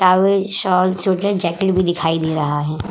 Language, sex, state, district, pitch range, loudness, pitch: Hindi, female, Uttar Pradesh, Hamirpur, 165-190 Hz, -17 LUFS, 185 Hz